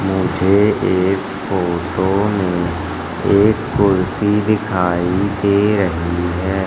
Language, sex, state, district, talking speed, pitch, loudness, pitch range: Hindi, male, Madhya Pradesh, Katni, 90 wpm, 95 Hz, -17 LUFS, 90-100 Hz